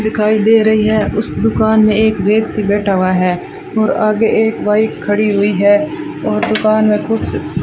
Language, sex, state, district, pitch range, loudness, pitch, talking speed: Hindi, female, Rajasthan, Bikaner, 205-220 Hz, -13 LUFS, 215 Hz, 190 wpm